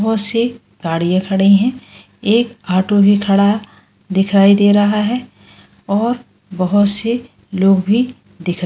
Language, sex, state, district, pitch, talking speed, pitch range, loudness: Hindi, female, Goa, North and South Goa, 205 Hz, 145 wpm, 195-230 Hz, -15 LUFS